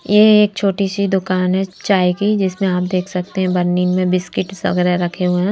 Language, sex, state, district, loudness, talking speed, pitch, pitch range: Hindi, female, Bihar, Katihar, -16 LUFS, 215 wpm, 185 Hz, 180-195 Hz